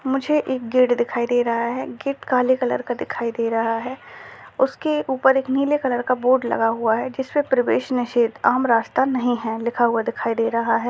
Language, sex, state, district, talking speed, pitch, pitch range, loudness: Hindi, female, Uttar Pradesh, Deoria, 210 wpm, 250 Hz, 235-265 Hz, -21 LUFS